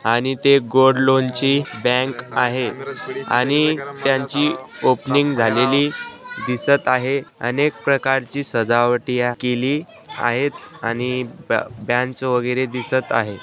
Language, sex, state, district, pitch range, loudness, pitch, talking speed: Marathi, male, Maharashtra, Sindhudurg, 125-140 Hz, -19 LUFS, 130 Hz, 105 wpm